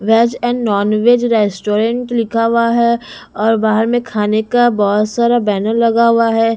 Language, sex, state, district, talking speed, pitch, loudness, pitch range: Hindi, female, Bihar, Patna, 165 wpm, 230 Hz, -14 LUFS, 215-235 Hz